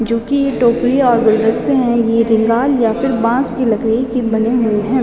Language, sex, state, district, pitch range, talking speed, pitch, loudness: Hindi, female, Uttarakhand, Tehri Garhwal, 225-250 Hz, 190 wpm, 235 Hz, -14 LUFS